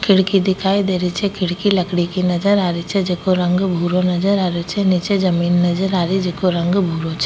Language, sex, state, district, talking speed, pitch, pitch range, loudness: Rajasthani, female, Rajasthan, Nagaur, 225 wpm, 185 Hz, 175-195 Hz, -17 LUFS